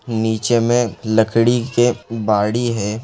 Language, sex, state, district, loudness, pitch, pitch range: Hindi, male, Bihar, Begusarai, -17 LUFS, 115 Hz, 110-120 Hz